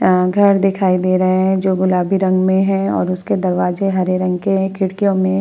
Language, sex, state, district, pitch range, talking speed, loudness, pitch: Hindi, female, Bihar, Vaishali, 185-195 Hz, 235 wpm, -16 LUFS, 190 Hz